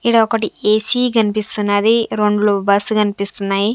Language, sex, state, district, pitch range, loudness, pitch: Telugu, female, Andhra Pradesh, Sri Satya Sai, 205-225 Hz, -15 LUFS, 210 Hz